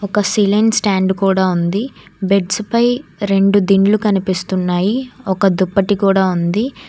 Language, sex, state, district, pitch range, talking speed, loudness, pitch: Telugu, female, Telangana, Hyderabad, 190-210 Hz, 120 wpm, -15 LUFS, 195 Hz